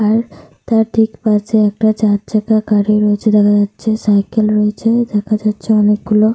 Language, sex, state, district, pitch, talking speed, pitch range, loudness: Bengali, female, Jharkhand, Sahebganj, 215 Hz, 150 wpm, 210-220 Hz, -14 LUFS